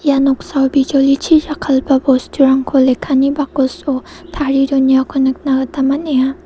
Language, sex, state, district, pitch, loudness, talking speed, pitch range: Garo, female, Meghalaya, South Garo Hills, 275 Hz, -14 LUFS, 100 wpm, 265-280 Hz